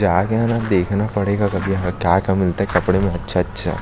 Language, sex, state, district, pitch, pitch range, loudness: Hindi, male, Chhattisgarh, Jashpur, 95 Hz, 90-100 Hz, -19 LUFS